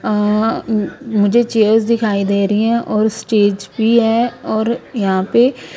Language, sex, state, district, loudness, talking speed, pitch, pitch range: Hindi, female, Punjab, Kapurthala, -15 LUFS, 155 wpm, 220 Hz, 205-230 Hz